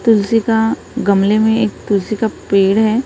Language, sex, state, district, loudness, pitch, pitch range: Hindi, female, Maharashtra, Gondia, -15 LUFS, 220 Hz, 200-225 Hz